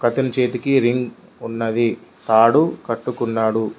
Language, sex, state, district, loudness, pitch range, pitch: Telugu, male, Telangana, Mahabubabad, -19 LUFS, 115-125 Hz, 120 Hz